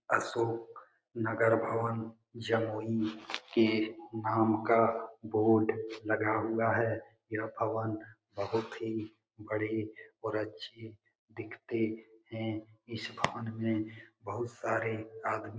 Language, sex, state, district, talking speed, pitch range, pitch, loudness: Hindi, male, Bihar, Jamui, 100 wpm, 110-115 Hz, 110 Hz, -33 LUFS